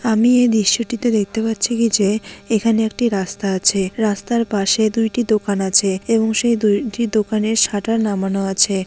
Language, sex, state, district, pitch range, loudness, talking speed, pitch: Bengali, female, West Bengal, Malda, 200-230 Hz, -17 LUFS, 150 wpm, 220 Hz